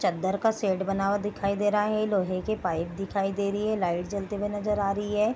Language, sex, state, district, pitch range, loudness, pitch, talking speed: Hindi, female, Bihar, Darbhanga, 195-210 Hz, -28 LUFS, 200 Hz, 255 wpm